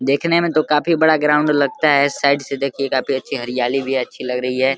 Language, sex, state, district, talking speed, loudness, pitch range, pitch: Hindi, male, Uttar Pradesh, Deoria, 250 wpm, -17 LUFS, 130-150 Hz, 140 Hz